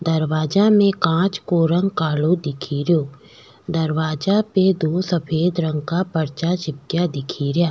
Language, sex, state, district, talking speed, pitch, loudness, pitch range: Rajasthani, female, Rajasthan, Nagaur, 140 wpm, 165 Hz, -20 LUFS, 155-180 Hz